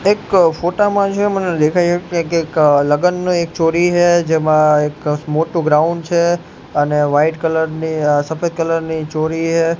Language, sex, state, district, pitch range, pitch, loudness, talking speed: Gujarati, male, Gujarat, Gandhinagar, 155-175 Hz, 165 Hz, -15 LUFS, 160 wpm